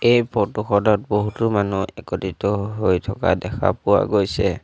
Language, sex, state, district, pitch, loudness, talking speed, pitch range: Assamese, male, Assam, Sonitpur, 105 Hz, -20 LUFS, 140 wpm, 100-110 Hz